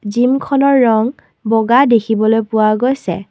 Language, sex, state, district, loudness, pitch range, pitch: Assamese, female, Assam, Kamrup Metropolitan, -13 LUFS, 220-255 Hz, 225 Hz